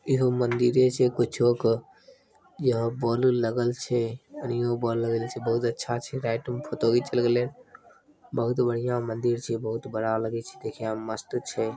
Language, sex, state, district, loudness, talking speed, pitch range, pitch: Maithili, male, Bihar, Begusarai, -27 LUFS, 195 wpm, 115-125 Hz, 120 Hz